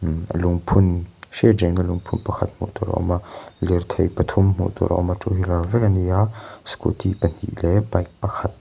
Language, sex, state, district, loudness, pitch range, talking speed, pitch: Mizo, male, Mizoram, Aizawl, -21 LUFS, 90-105 Hz, 195 wpm, 95 Hz